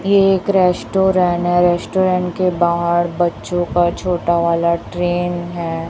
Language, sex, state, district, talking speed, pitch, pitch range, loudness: Hindi, female, Chhattisgarh, Raipur, 130 wpm, 175 Hz, 175-180 Hz, -16 LUFS